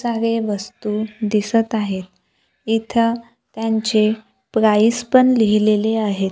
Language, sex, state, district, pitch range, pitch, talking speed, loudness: Marathi, female, Maharashtra, Gondia, 210-230 Hz, 220 Hz, 95 wpm, -18 LUFS